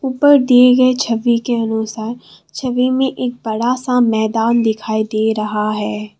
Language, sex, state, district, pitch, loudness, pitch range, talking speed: Hindi, female, Assam, Kamrup Metropolitan, 230 Hz, -15 LUFS, 220-250 Hz, 155 wpm